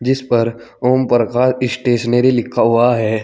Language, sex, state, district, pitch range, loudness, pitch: Hindi, male, Uttar Pradesh, Saharanpur, 115-125 Hz, -15 LUFS, 120 Hz